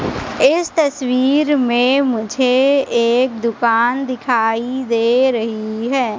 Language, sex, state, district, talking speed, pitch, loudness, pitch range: Hindi, female, Madhya Pradesh, Katni, 95 wpm, 250 Hz, -16 LUFS, 230-265 Hz